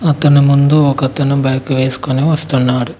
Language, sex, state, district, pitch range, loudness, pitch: Telugu, male, Telangana, Mahabubabad, 130-145 Hz, -13 LUFS, 140 Hz